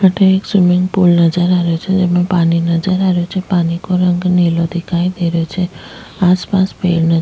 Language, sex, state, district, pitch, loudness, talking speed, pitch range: Rajasthani, female, Rajasthan, Nagaur, 180 Hz, -14 LUFS, 215 wpm, 170-185 Hz